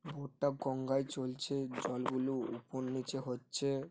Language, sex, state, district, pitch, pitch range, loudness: Bengali, male, West Bengal, North 24 Parganas, 135 Hz, 130-140 Hz, -38 LUFS